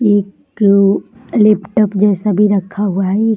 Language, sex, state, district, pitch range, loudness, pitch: Hindi, female, Bihar, Jamui, 200-215 Hz, -13 LUFS, 205 Hz